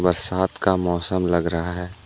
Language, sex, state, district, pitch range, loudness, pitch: Hindi, male, Jharkhand, Deoghar, 85-95 Hz, -22 LUFS, 90 Hz